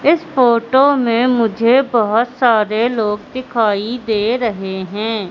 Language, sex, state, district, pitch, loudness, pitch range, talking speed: Hindi, female, Madhya Pradesh, Katni, 230 Hz, -15 LUFS, 215-250 Hz, 125 wpm